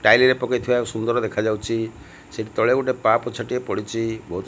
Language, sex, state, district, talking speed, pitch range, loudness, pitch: Odia, male, Odisha, Malkangiri, 160 wpm, 110-125 Hz, -22 LUFS, 115 Hz